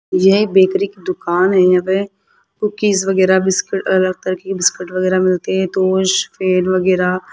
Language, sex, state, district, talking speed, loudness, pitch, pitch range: Hindi, male, Rajasthan, Jaipur, 155 wpm, -15 LUFS, 190 Hz, 185-195 Hz